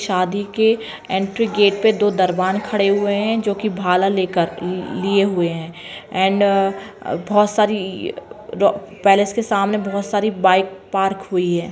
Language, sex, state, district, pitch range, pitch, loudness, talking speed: Kumaoni, female, Uttarakhand, Uttarkashi, 185-205 Hz, 195 Hz, -18 LUFS, 150 wpm